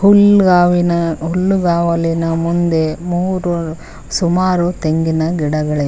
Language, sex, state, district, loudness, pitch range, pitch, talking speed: Kannada, female, Karnataka, Koppal, -15 LUFS, 160-180 Hz, 170 Hz, 70 wpm